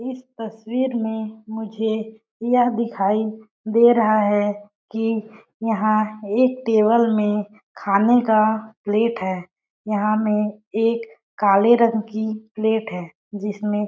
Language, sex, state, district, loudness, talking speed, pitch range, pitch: Hindi, female, Chhattisgarh, Balrampur, -20 LUFS, 120 wpm, 210-225 Hz, 220 Hz